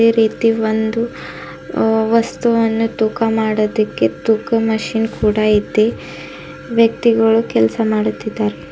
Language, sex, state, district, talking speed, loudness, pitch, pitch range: Kannada, female, Karnataka, Bidar, 80 wpm, -16 LUFS, 225 Hz, 215-230 Hz